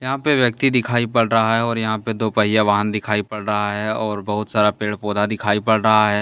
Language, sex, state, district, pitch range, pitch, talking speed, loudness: Hindi, male, Jharkhand, Deoghar, 105-115 Hz, 110 Hz, 240 wpm, -19 LUFS